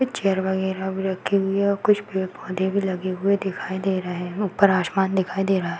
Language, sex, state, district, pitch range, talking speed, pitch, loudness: Hindi, female, Uttar Pradesh, Varanasi, 190-200 Hz, 225 wpm, 190 Hz, -23 LUFS